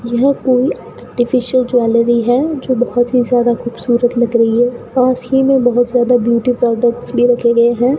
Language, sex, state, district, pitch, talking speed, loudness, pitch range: Hindi, female, Rajasthan, Bikaner, 245 Hz, 180 wpm, -13 LUFS, 240-255 Hz